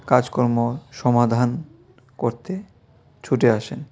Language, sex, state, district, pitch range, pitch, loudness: Bengali, male, Tripura, West Tripura, 120-140 Hz, 125 Hz, -22 LUFS